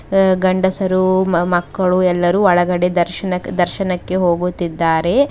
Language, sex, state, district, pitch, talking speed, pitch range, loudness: Kannada, female, Karnataka, Bidar, 180 Hz, 115 wpm, 175-185 Hz, -16 LUFS